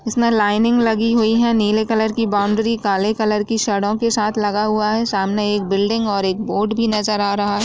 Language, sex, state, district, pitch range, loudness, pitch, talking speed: Hindi, female, Bihar, Jahanabad, 205-225 Hz, -18 LUFS, 215 Hz, 225 wpm